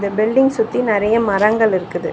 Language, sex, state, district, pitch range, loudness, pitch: Tamil, female, Tamil Nadu, Chennai, 200-225 Hz, -16 LUFS, 215 Hz